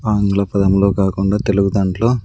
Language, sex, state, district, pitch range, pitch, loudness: Telugu, male, Andhra Pradesh, Sri Satya Sai, 95-105 Hz, 100 Hz, -16 LUFS